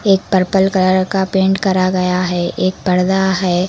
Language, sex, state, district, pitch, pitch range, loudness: Hindi, female, Karnataka, Koppal, 185 Hz, 185-190 Hz, -15 LUFS